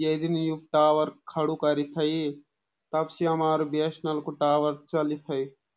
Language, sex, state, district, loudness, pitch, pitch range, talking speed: Garhwali, male, Uttarakhand, Uttarkashi, -27 LUFS, 155 Hz, 145-155 Hz, 145 wpm